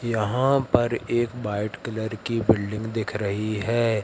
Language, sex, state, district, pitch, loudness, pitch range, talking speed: Hindi, male, Madhya Pradesh, Katni, 110 Hz, -25 LUFS, 105-120 Hz, 150 wpm